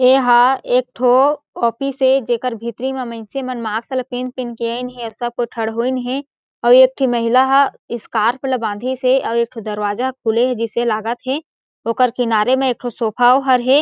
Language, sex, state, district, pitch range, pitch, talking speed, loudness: Chhattisgarhi, female, Chhattisgarh, Jashpur, 235-260 Hz, 250 Hz, 215 wpm, -17 LUFS